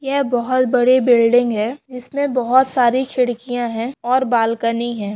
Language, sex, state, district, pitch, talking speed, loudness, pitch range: Hindi, female, Maharashtra, Solapur, 245 Hz, 150 wpm, -17 LUFS, 235-260 Hz